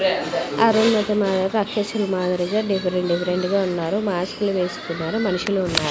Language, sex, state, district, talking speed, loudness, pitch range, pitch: Telugu, female, Andhra Pradesh, Sri Satya Sai, 120 wpm, -21 LUFS, 180-210 Hz, 190 Hz